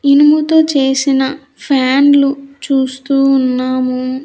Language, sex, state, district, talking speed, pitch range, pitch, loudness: Telugu, female, Andhra Pradesh, Sri Satya Sai, 70 wpm, 265-285 Hz, 275 Hz, -12 LUFS